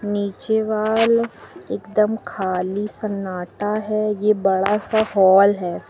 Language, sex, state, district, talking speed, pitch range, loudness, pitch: Hindi, female, Uttar Pradesh, Lucknow, 110 wpm, 195-215 Hz, -20 LUFS, 210 Hz